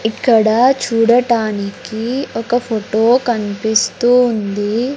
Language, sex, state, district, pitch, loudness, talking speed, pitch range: Telugu, male, Andhra Pradesh, Sri Satya Sai, 230 Hz, -15 LUFS, 70 wpm, 220-245 Hz